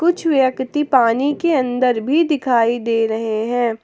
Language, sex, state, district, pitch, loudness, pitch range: Hindi, female, Jharkhand, Palamu, 255 Hz, -17 LUFS, 230-295 Hz